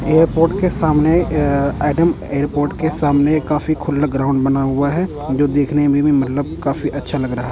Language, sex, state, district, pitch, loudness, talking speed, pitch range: Hindi, male, Punjab, Kapurthala, 145 Hz, -17 LUFS, 190 wpm, 140-155 Hz